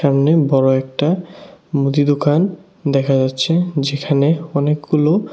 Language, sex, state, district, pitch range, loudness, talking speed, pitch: Bengali, male, Tripura, West Tripura, 140-165 Hz, -16 LUFS, 100 wpm, 145 Hz